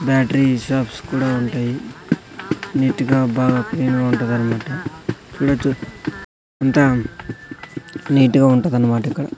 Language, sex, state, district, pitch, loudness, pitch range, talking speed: Telugu, male, Andhra Pradesh, Sri Satya Sai, 130 Hz, -18 LUFS, 125-135 Hz, 100 wpm